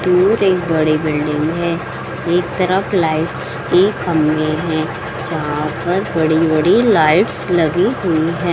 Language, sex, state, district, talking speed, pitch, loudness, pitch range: Hindi, female, Bihar, Saran, 125 wpm, 165 Hz, -16 LUFS, 155-180 Hz